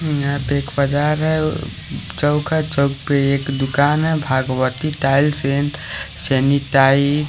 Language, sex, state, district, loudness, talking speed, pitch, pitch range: Hindi, male, Haryana, Rohtak, -18 LUFS, 140 wpm, 140 Hz, 135-150 Hz